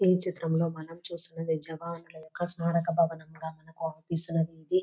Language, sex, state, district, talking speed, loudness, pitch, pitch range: Telugu, female, Telangana, Nalgonda, 150 wpm, -31 LUFS, 165 Hz, 160-170 Hz